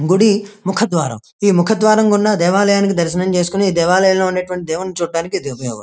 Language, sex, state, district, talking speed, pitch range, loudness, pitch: Telugu, male, Andhra Pradesh, Krishna, 155 wpm, 170-200 Hz, -15 LUFS, 185 Hz